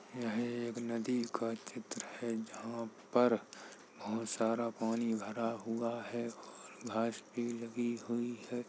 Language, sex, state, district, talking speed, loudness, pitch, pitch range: Hindi, male, Uttar Pradesh, Jalaun, 140 wpm, -38 LUFS, 115 Hz, 115-120 Hz